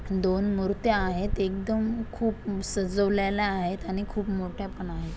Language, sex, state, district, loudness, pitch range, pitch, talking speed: Marathi, female, Maharashtra, Aurangabad, -28 LUFS, 190-205 Hz, 195 Hz, 140 wpm